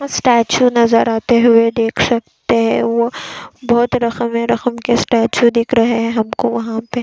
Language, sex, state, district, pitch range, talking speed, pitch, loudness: Hindi, female, Chhattisgarh, Raigarh, 230-240 Hz, 155 wpm, 235 Hz, -14 LUFS